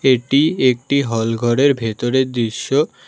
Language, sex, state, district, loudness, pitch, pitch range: Bengali, male, Karnataka, Bangalore, -17 LUFS, 125 Hz, 115-135 Hz